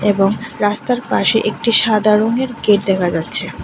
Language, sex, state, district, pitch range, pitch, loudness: Bengali, female, Tripura, West Tripura, 200-230 Hz, 215 Hz, -15 LUFS